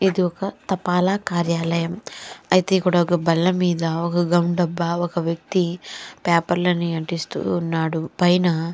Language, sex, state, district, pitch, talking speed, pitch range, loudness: Telugu, female, Andhra Pradesh, Chittoor, 175 Hz, 135 wpm, 170-180 Hz, -21 LUFS